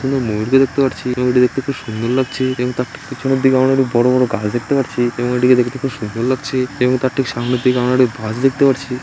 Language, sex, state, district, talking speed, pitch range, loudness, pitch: Bengali, male, West Bengal, Malda, 240 wpm, 125-135 Hz, -16 LUFS, 125 Hz